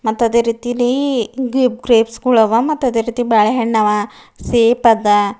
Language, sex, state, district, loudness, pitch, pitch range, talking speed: Kannada, female, Karnataka, Bidar, -15 LUFS, 235 Hz, 220-245 Hz, 135 wpm